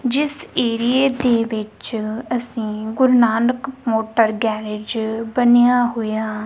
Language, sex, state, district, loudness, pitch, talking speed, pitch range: Punjabi, female, Punjab, Kapurthala, -19 LUFS, 230 Hz, 95 wpm, 220-245 Hz